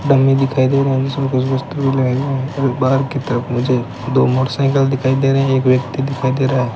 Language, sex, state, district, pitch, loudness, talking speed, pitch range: Hindi, male, Rajasthan, Bikaner, 135 Hz, -16 LUFS, 205 wpm, 130-135 Hz